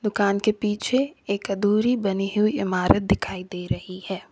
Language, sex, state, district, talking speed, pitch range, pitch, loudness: Hindi, female, Uttar Pradesh, Lalitpur, 165 wpm, 195-210 Hz, 200 Hz, -24 LUFS